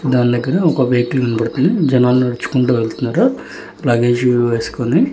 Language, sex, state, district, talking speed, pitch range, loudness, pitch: Telugu, male, Telangana, Hyderabad, 130 wpm, 120-130 Hz, -15 LUFS, 125 Hz